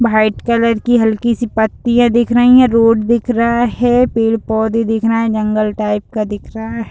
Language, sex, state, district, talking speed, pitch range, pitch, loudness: Hindi, female, Uttar Pradesh, Deoria, 200 wpm, 220-235 Hz, 230 Hz, -14 LUFS